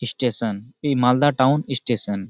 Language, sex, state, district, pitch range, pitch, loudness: Bengali, male, West Bengal, Malda, 115-135 Hz, 125 Hz, -21 LUFS